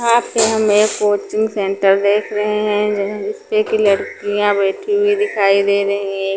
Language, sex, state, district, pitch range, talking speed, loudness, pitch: Hindi, female, Punjab, Pathankot, 200-220 Hz, 170 wpm, -16 LUFS, 210 Hz